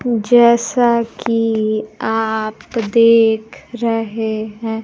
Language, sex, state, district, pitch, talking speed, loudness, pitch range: Hindi, female, Bihar, Kaimur, 225 Hz, 75 wpm, -16 LUFS, 220-235 Hz